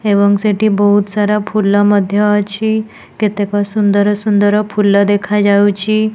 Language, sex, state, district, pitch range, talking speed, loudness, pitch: Odia, female, Odisha, Nuapada, 205-210 Hz, 115 wpm, -13 LUFS, 205 Hz